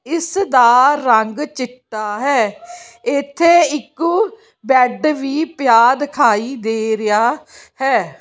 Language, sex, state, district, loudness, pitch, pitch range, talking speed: Punjabi, female, Chandigarh, Chandigarh, -15 LUFS, 275 Hz, 240-325 Hz, 100 wpm